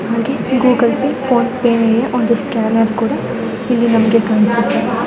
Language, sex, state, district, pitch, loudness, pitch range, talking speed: Kannada, female, Karnataka, Mysore, 235 Hz, -14 LUFS, 225-250 Hz, 165 wpm